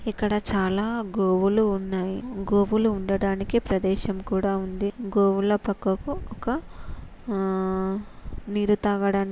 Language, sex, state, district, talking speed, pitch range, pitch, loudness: Telugu, female, Telangana, Nalgonda, 90 wpm, 195-210 Hz, 200 Hz, -25 LUFS